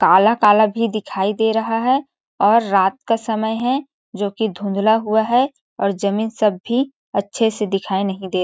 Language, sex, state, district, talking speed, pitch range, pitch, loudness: Hindi, female, Chhattisgarh, Balrampur, 180 wpm, 200-230 Hz, 220 Hz, -18 LUFS